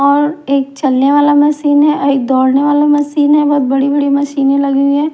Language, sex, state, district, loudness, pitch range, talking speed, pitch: Hindi, female, Maharashtra, Mumbai Suburban, -11 LUFS, 275-290 Hz, 220 wpm, 285 Hz